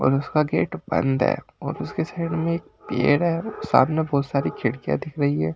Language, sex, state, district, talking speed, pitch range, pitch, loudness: Hindi, male, Delhi, New Delhi, 205 wpm, 135-165 Hz, 150 Hz, -23 LUFS